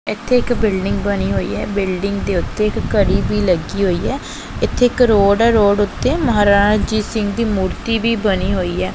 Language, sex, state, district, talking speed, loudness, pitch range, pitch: Punjabi, male, Punjab, Pathankot, 210 wpm, -16 LUFS, 195-225 Hz, 205 Hz